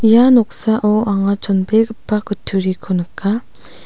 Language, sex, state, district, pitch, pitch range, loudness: Garo, female, Meghalaya, South Garo Hills, 210 Hz, 195-220 Hz, -16 LUFS